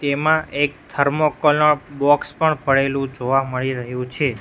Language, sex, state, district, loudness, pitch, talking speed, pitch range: Gujarati, male, Gujarat, Gandhinagar, -19 LUFS, 140 Hz, 150 wpm, 135-150 Hz